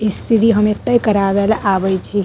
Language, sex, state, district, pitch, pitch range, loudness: Maithili, female, Bihar, Madhepura, 210 Hz, 200-220 Hz, -15 LUFS